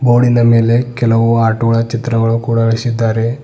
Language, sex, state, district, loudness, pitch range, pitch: Kannada, male, Karnataka, Bidar, -13 LUFS, 115-120 Hz, 115 Hz